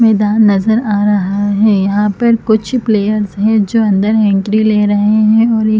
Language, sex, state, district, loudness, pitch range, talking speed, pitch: Hindi, female, Chhattisgarh, Bilaspur, -12 LUFS, 205-220 Hz, 195 wpm, 215 Hz